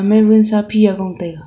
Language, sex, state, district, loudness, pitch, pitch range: Wancho, female, Arunachal Pradesh, Longding, -13 LUFS, 210 Hz, 190-215 Hz